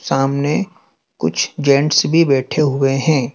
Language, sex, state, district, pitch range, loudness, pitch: Hindi, male, Madhya Pradesh, Dhar, 135-155 Hz, -16 LUFS, 145 Hz